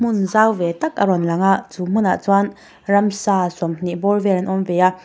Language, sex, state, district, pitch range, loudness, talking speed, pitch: Mizo, female, Mizoram, Aizawl, 180-200 Hz, -18 LUFS, 225 wpm, 190 Hz